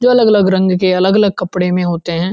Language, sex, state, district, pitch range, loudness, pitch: Hindi, male, Uttarakhand, Uttarkashi, 180-200 Hz, -13 LUFS, 185 Hz